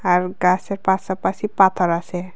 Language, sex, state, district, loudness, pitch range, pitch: Bengali, female, Tripura, West Tripura, -19 LUFS, 180-190 Hz, 185 Hz